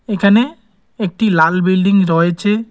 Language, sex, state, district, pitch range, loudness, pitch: Bengali, male, West Bengal, Cooch Behar, 185-215 Hz, -14 LUFS, 200 Hz